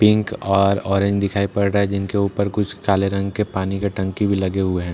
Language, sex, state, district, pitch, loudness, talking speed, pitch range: Hindi, male, Bihar, Katihar, 100 Hz, -20 LUFS, 240 wpm, 95-100 Hz